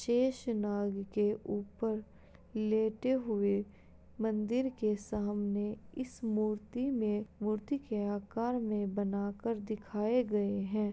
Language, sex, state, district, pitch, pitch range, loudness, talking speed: Hindi, female, Uttar Pradesh, Jalaun, 215 Hz, 205-230 Hz, -35 LUFS, 105 wpm